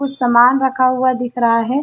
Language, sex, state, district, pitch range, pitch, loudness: Hindi, female, Chhattisgarh, Bilaspur, 245-265 Hz, 255 Hz, -14 LUFS